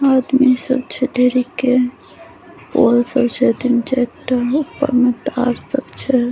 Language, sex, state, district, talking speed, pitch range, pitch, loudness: Maithili, female, Bihar, Saharsa, 140 wpm, 245-260 Hz, 255 Hz, -17 LUFS